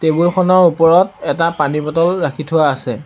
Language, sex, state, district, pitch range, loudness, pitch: Assamese, male, Assam, Sonitpur, 150-175 Hz, -14 LUFS, 165 Hz